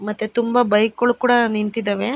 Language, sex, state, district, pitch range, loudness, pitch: Kannada, male, Karnataka, Mysore, 210-240 Hz, -18 LUFS, 225 Hz